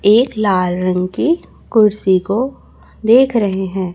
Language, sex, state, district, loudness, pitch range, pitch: Hindi, male, Chhattisgarh, Raipur, -15 LUFS, 185-230 Hz, 205 Hz